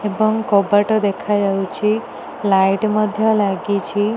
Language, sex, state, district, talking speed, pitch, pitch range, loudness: Odia, female, Odisha, Nuapada, 100 wpm, 205 Hz, 200-215 Hz, -17 LUFS